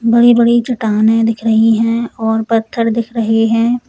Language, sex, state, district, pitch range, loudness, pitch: Hindi, female, Uttar Pradesh, Lalitpur, 225-235 Hz, -13 LUFS, 225 Hz